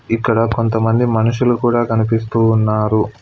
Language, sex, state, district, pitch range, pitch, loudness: Telugu, male, Telangana, Hyderabad, 110-115 Hz, 115 Hz, -15 LUFS